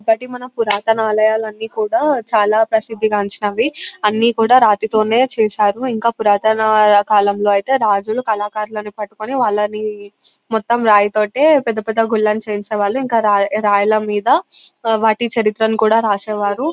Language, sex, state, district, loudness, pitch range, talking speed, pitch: Telugu, female, Telangana, Nalgonda, -16 LUFS, 210-225 Hz, 130 wpm, 215 Hz